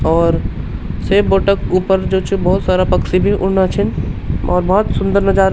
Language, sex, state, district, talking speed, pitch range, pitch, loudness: Garhwali, male, Uttarakhand, Tehri Garhwal, 195 wpm, 180-195 Hz, 190 Hz, -15 LUFS